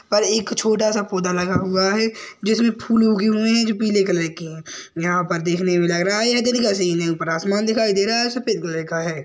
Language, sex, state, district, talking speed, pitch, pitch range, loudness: Hindi, male, Chhattisgarh, Jashpur, 265 wpm, 205 Hz, 175-220 Hz, -19 LUFS